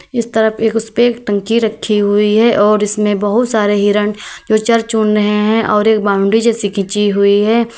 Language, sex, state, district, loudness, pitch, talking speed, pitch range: Hindi, female, Uttar Pradesh, Lalitpur, -13 LUFS, 215 Hz, 210 wpm, 205-225 Hz